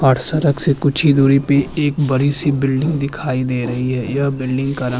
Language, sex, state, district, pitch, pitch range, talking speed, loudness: Hindi, male, Uttarakhand, Tehri Garhwal, 140 Hz, 130-145 Hz, 205 wpm, -16 LUFS